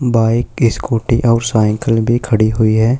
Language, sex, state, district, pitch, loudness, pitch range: Hindi, male, Uttar Pradesh, Shamli, 115 Hz, -14 LUFS, 110-120 Hz